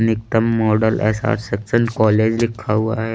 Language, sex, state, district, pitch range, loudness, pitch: Hindi, male, Chandigarh, Chandigarh, 110-115 Hz, -18 LUFS, 110 Hz